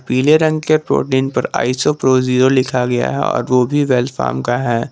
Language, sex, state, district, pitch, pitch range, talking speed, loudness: Hindi, male, Jharkhand, Garhwa, 130 Hz, 125-140 Hz, 220 wpm, -15 LUFS